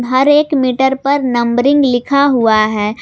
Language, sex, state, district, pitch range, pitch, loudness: Hindi, female, Jharkhand, Garhwa, 240-280 Hz, 260 Hz, -12 LUFS